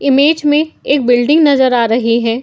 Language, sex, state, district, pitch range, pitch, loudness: Hindi, female, Uttar Pradesh, Muzaffarnagar, 240-295 Hz, 270 Hz, -12 LUFS